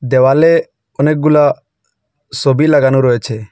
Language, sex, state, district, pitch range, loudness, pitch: Bengali, male, Assam, Hailakandi, 130-150 Hz, -12 LUFS, 135 Hz